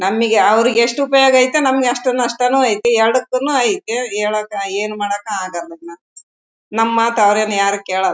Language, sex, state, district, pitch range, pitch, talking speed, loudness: Kannada, female, Karnataka, Bellary, 205-255 Hz, 225 Hz, 155 wpm, -15 LUFS